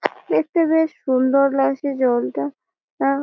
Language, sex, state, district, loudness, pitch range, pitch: Bengali, female, West Bengal, Malda, -20 LUFS, 255-290 Hz, 275 Hz